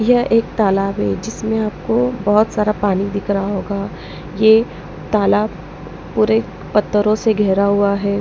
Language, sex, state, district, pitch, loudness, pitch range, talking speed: Hindi, female, Punjab, Pathankot, 205 Hz, -17 LUFS, 195-220 Hz, 145 wpm